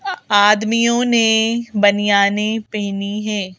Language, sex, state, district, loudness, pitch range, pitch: Hindi, female, Madhya Pradesh, Bhopal, -16 LUFS, 205-230 Hz, 215 Hz